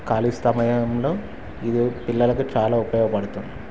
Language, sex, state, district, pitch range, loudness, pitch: Telugu, male, Andhra Pradesh, Srikakulam, 115-120 Hz, -22 LUFS, 120 Hz